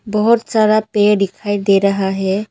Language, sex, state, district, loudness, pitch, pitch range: Hindi, female, Arunachal Pradesh, Papum Pare, -15 LUFS, 205 Hz, 195-215 Hz